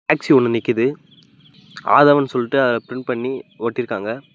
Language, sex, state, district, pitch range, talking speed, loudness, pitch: Tamil, male, Tamil Nadu, Namakkal, 120-135 Hz, 110 wpm, -18 LUFS, 125 Hz